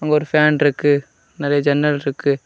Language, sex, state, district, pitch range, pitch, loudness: Tamil, male, Tamil Nadu, Kanyakumari, 140-150 Hz, 145 Hz, -17 LUFS